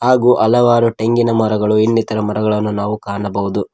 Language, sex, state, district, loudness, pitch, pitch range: Kannada, male, Karnataka, Koppal, -15 LUFS, 110 Hz, 105-115 Hz